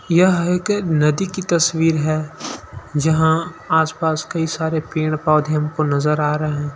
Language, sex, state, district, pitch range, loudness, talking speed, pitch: Hindi, male, Chhattisgarh, Sukma, 155-170 Hz, -18 LUFS, 150 wpm, 160 Hz